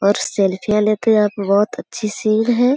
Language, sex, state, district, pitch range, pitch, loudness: Hindi, female, Uttar Pradesh, Gorakhpur, 205-225 Hz, 215 Hz, -17 LUFS